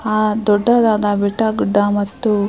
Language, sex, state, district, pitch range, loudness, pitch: Kannada, female, Karnataka, Mysore, 205-220 Hz, -16 LUFS, 210 Hz